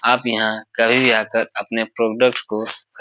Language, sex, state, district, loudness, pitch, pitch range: Hindi, male, Bihar, Supaul, -18 LUFS, 115 Hz, 110-120 Hz